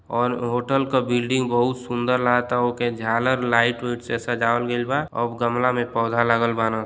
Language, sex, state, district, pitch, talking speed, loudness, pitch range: Bhojpuri, male, Uttar Pradesh, Deoria, 120 Hz, 175 wpm, -22 LUFS, 115-125 Hz